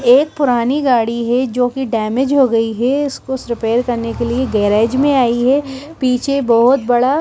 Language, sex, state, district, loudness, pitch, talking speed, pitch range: Hindi, female, Himachal Pradesh, Shimla, -15 LUFS, 250 Hz, 185 wpm, 235-270 Hz